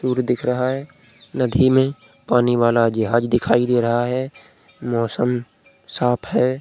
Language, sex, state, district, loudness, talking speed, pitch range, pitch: Hindi, male, Bihar, Begusarai, -19 LUFS, 145 wpm, 120-130 Hz, 125 Hz